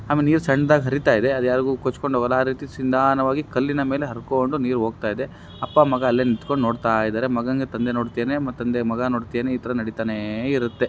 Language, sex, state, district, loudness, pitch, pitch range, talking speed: Kannada, male, Karnataka, Raichur, -22 LUFS, 130 Hz, 120-135 Hz, 180 wpm